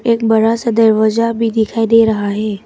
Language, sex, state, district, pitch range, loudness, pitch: Hindi, female, Arunachal Pradesh, Papum Pare, 220-230 Hz, -13 LUFS, 225 Hz